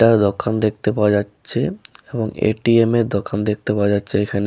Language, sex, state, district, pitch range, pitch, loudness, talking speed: Bengali, male, West Bengal, Malda, 100-110 Hz, 105 Hz, -19 LUFS, 160 wpm